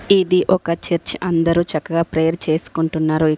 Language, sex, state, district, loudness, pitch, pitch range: Telugu, female, Telangana, Komaram Bheem, -18 LUFS, 165 Hz, 160-175 Hz